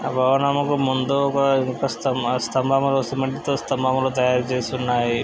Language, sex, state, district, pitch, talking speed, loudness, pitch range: Telugu, male, Andhra Pradesh, Krishna, 130 Hz, 150 wpm, -21 LUFS, 125-135 Hz